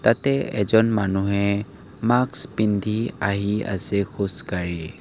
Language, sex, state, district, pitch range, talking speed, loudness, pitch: Assamese, male, Assam, Kamrup Metropolitan, 100-110 Hz, 95 wpm, -23 LUFS, 100 Hz